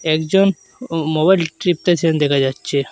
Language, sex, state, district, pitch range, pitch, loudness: Bengali, male, Assam, Hailakandi, 155-185 Hz, 165 Hz, -17 LUFS